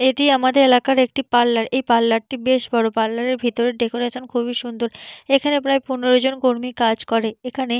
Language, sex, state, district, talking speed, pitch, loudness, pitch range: Bengali, female, West Bengal, Purulia, 190 wpm, 250 Hz, -19 LUFS, 235-260 Hz